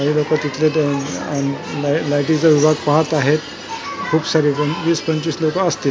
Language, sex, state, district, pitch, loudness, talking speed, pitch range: Marathi, male, Maharashtra, Mumbai Suburban, 155 Hz, -18 LUFS, 170 wpm, 145-160 Hz